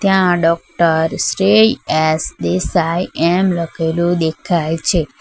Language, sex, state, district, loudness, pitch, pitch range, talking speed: Gujarati, female, Gujarat, Valsad, -15 LUFS, 170 Hz, 160-185 Hz, 105 wpm